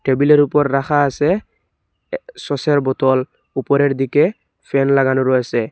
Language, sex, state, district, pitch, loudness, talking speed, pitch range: Bengali, male, Assam, Hailakandi, 140 Hz, -16 LUFS, 125 wpm, 130-145 Hz